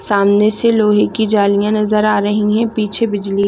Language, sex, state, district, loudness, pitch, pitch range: Hindi, female, Chhattisgarh, Raigarh, -14 LUFS, 210 Hz, 205-215 Hz